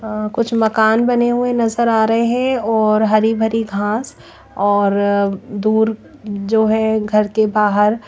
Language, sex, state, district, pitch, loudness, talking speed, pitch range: Hindi, female, Bihar, Katihar, 220 Hz, -16 LUFS, 150 wpm, 210-225 Hz